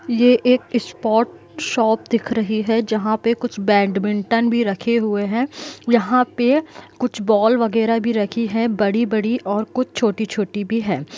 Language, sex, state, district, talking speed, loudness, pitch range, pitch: Hindi, female, Bihar, Gopalganj, 160 wpm, -19 LUFS, 210-240 Hz, 230 Hz